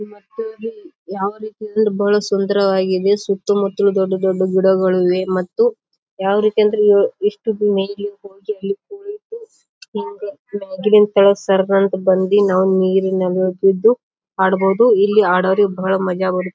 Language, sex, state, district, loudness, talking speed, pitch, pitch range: Kannada, female, Karnataka, Bijapur, -16 LUFS, 120 wpm, 200 Hz, 190-210 Hz